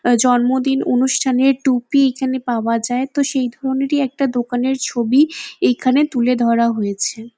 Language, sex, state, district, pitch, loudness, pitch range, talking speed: Bengali, female, West Bengal, Jalpaiguri, 255 Hz, -17 LUFS, 240-270 Hz, 140 wpm